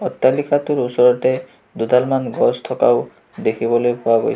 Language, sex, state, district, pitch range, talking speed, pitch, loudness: Assamese, male, Assam, Kamrup Metropolitan, 120-130 Hz, 125 wpm, 125 Hz, -17 LUFS